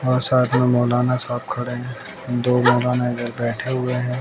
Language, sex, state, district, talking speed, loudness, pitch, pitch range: Hindi, male, Bihar, West Champaran, 185 wpm, -20 LUFS, 125 Hz, 120-125 Hz